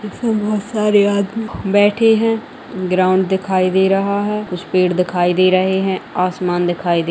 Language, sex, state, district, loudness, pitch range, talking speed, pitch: Hindi, female, Bihar, Gaya, -16 LUFS, 185-210 Hz, 175 wpm, 190 Hz